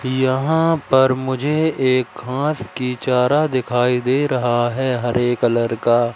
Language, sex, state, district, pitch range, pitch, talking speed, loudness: Hindi, male, Madhya Pradesh, Katni, 120-135 Hz, 130 Hz, 135 wpm, -18 LUFS